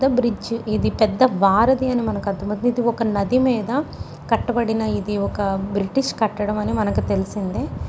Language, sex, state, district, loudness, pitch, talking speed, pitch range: Telugu, female, Andhra Pradesh, Chittoor, -21 LUFS, 220 Hz, 130 wpm, 200-240 Hz